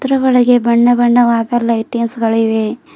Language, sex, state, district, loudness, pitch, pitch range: Kannada, female, Karnataka, Bidar, -13 LUFS, 235 Hz, 230-245 Hz